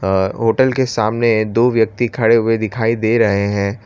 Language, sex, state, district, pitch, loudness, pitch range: Hindi, male, Gujarat, Valsad, 115 Hz, -15 LUFS, 105-115 Hz